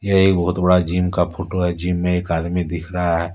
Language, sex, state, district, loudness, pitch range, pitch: Hindi, male, Jharkhand, Deoghar, -19 LUFS, 85-90 Hz, 90 Hz